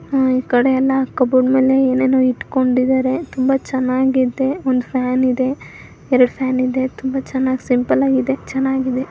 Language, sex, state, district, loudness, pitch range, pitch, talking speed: Kannada, female, Karnataka, Mysore, -17 LUFS, 255-265 Hz, 260 Hz, 130 wpm